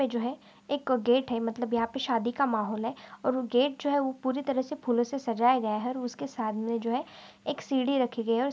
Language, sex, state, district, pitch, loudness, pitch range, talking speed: Hindi, female, Maharashtra, Aurangabad, 250 Hz, -29 LUFS, 235-270 Hz, 255 wpm